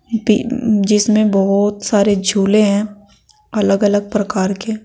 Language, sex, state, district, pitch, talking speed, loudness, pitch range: Hindi, female, Uttar Pradesh, Saharanpur, 205 Hz, 110 wpm, -15 LUFS, 200-215 Hz